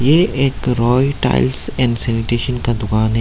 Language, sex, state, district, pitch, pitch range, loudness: Hindi, male, Tripura, Dhalai, 120 Hz, 110-130 Hz, -16 LUFS